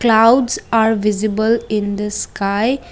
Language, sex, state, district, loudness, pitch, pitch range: English, female, Assam, Kamrup Metropolitan, -16 LUFS, 220 Hz, 210-230 Hz